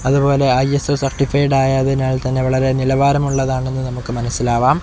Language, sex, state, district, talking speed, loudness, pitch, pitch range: Malayalam, male, Kerala, Kozhikode, 110 wpm, -16 LUFS, 135 Hz, 130-140 Hz